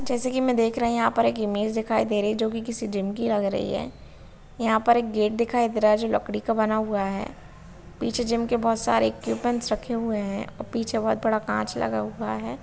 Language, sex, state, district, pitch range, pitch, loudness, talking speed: Hindi, female, Chhattisgarh, Bilaspur, 205-235 Hz, 220 Hz, -25 LUFS, 250 wpm